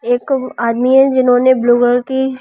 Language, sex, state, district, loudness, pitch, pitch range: Hindi, female, Delhi, New Delhi, -13 LUFS, 250 Hz, 245-265 Hz